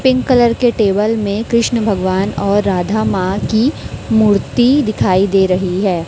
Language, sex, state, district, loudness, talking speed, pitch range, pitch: Hindi, female, Chhattisgarh, Raipur, -14 LUFS, 160 wpm, 195-235 Hz, 210 Hz